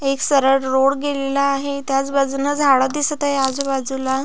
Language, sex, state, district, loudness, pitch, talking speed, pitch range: Marathi, female, Maharashtra, Pune, -18 LUFS, 275 Hz, 155 wpm, 270-280 Hz